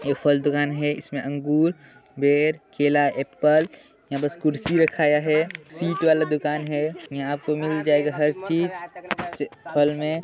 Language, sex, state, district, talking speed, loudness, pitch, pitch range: Hindi, male, Chhattisgarh, Sarguja, 165 wpm, -23 LUFS, 150 Hz, 145-160 Hz